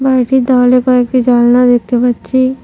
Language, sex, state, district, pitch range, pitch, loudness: Bengali, female, West Bengal, Cooch Behar, 245-255 Hz, 250 Hz, -10 LUFS